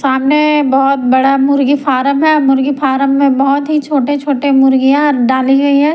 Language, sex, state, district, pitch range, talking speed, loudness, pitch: Hindi, female, Punjab, Pathankot, 270-290 Hz, 160 wpm, -11 LUFS, 275 Hz